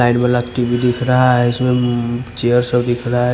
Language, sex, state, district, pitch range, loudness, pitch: Hindi, male, Punjab, Fazilka, 120-125 Hz, -16 LUFS, 120 Hz